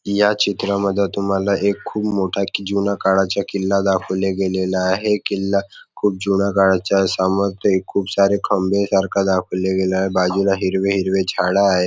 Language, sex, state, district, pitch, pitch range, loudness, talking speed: Marathi, male, Maharashtra, Nagpur, 95 Hz, 95-100 Hz, -18 LUFS, 135 wpm